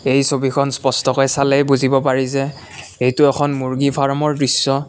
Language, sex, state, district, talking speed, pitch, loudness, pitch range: Assamese, male, Assam, Kamrup Metropolitan, 145 wpm, 135 Hz, -16 LUFS, 130-140 Hz